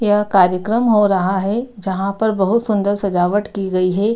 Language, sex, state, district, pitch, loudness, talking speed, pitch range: Hindi, female, Bihar, Kishanganj, 200 Hz, -17 LUFS, 190 wpm, 190-215 Hz